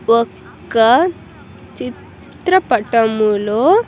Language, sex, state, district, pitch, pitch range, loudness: Telugu, female, Andhra Pradesh, Sri Satya Sai, 235 Hz, 220-345 Hz, -15 LUFS